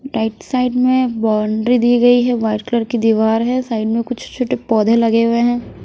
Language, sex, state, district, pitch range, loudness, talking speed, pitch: Hindi, female, Maharashtra, Gondia, 225-245 Hz, -16 LUFS, 205 wpm, 235 Hz